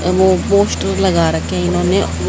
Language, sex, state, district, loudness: Hindi, female, Haryana, Jhajjar, -15 LUFS